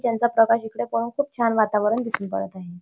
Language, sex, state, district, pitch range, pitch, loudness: Marathi, female, Maharashtra, Chandrapur, 190-235 Hz, 225 Hz, -22 LUFS